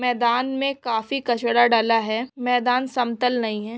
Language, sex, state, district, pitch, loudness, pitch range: Hindi, female, Maharashtra, Aurangabad, 240 Hz, -21 LUFS, 230-250 Hz